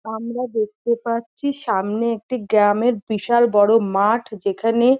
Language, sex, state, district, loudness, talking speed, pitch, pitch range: Bengali, female, West Bengal, North 24 Parganas, -19 LUFS, 120 wpm, 225 Hz, 210-235 Hz